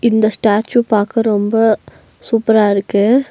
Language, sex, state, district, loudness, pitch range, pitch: Tamil, female, Tamil Nadu, Nilgiris, -14 LUFS, 210-230 Hz, 220 Hz